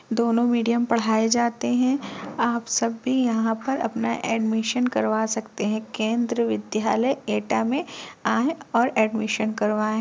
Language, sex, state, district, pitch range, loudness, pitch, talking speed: Hindi, female, Uttar Pradesh, Etah, 220-240 Hz, -23 LUFS, 230 Hz, 140 wpm